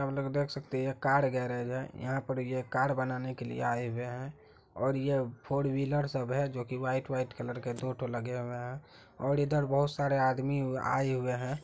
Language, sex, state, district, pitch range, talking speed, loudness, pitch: Hindi, male, Bihar, Araria, 125-140 Hz, 215 wpm, -33 LUFS, 130 Hz